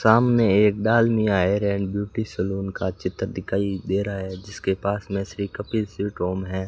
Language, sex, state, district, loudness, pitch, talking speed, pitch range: Hindi, male, Rajasthan, Bikaner, -23 LUFS, 100 Hz, 200 wpm, 95-105 Hz